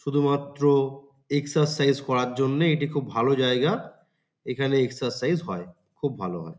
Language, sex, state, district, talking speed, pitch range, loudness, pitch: Bengali, male, West Bengal, Paschim Medinipur, 125 wpm, 125-145 Hz, -25 LUFS, 135 Hz